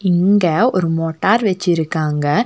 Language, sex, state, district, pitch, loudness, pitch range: Tamil, female, Tamil Nadu, Nilgiris, 175 Hz, -16 LUFS, 160-195 Hz